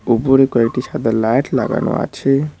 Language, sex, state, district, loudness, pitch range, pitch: Bengali, male, West Bengal, Cooch Behar, -16 LUFS, 115-135 Hz, 125 Hz